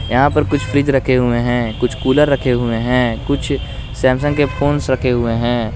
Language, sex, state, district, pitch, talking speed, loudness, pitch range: Hindi, male, Jharkhand, Garhwa, 130 Hz, 200 wpm, -16 LUFS, 120-140 Hz